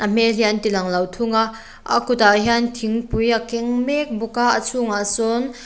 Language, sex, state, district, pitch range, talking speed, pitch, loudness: Mizo, female, Mizoram, Aizawl, 215-235 Hz, 190 wpm, 230 Hz, -19 LUFS